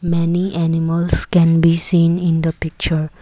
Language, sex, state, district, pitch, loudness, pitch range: English, female, Assam, Kamrup Metropolitan, 165 Hz, -16 LUFS, 165-170 Hz